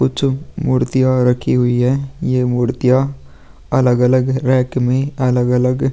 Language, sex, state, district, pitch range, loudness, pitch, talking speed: Hindi, male, Bihar, Vaishali, 125-130 Hz, -16 LUFS, 130 Hz, 120 wpm